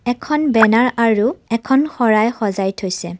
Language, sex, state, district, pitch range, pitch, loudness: Assamese, female, Assam, Kamrup Metropolitan, 210-245 Hz, 230 Hz, -16 LUFS